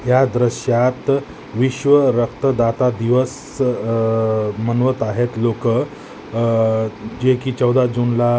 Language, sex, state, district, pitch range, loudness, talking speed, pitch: Marathi, male, Maharashtra, Nagpur, 115-130 Hz, -18 LUFS, 100 wpm, 120 Hz